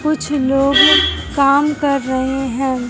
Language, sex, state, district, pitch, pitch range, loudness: Hindi, female, Haryana, Jhajjar, 275 Hz, 265-285 Hz, -14 LUFS